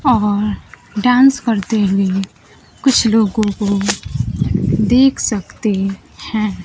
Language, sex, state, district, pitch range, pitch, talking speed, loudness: Hindi, female, Bihar, Kaimur, 200-230 Hz, 210 Hz, 90 wpm, -16 LUFS